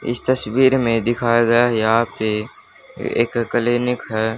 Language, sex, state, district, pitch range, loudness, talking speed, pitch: Hindi, male, Haryana, Charkhi Dadri, 115-120 Hz, -18 LUFS, 150 wpm, 120 Hz